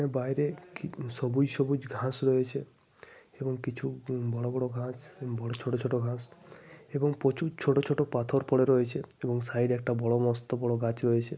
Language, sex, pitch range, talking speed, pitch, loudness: Bengali, male, 120-140 Hz, 160 wpm, 130 Hz, -30 LUFS